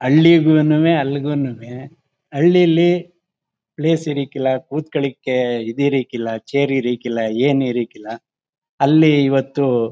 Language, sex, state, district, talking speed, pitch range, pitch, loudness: Kannada, male, Karnataka, Mysore, 90 wpm, 125-155 Hz, 140 Hz, -17 LUFS